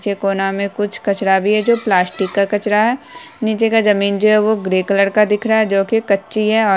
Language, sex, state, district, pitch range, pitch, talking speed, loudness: Hindi, female, Bihar, Saharsa, 195-220 Hz, 210 Hz, 250 wpm, -16 LUFS